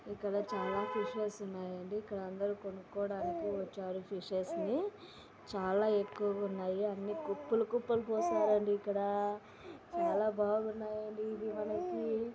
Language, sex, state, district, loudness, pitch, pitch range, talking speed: Telugu, female, Andhra Pradesh, Anantapur, -37 LUFS, 205 Hz, 200-215 Hz, 110 wpm